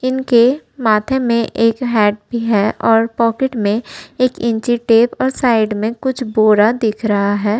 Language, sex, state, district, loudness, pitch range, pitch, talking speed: Hindi, female, Uttar Pradesh, Budaun, -15 LUFS, 215-250 Hz, 230 Hz, 165 wpm